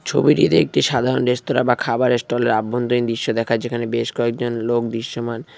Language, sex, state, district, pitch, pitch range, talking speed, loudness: Bengali, male, West Bengal, Cooch Behar, 120 Hz, 115-120 Hz, 170 wpm, -19 LUFS